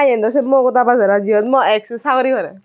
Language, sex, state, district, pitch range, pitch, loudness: Chakma, female, Tripura, Unakoti, 215-265 Hz, 245 Hz, -14 LUFS